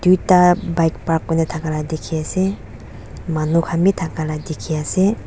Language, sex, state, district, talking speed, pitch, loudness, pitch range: Nagamese, female, Nagaland, Dimapur, 125 wpm, 165 Hz, -19 LUFS, 155-180 Hz